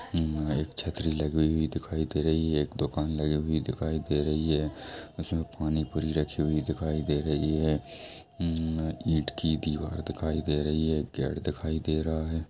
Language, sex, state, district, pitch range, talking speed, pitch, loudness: Hindi, male, Uttar Pradesh, Deoria, 75-80 Hz, 185 wpm, 80 Hz, -30 LUFS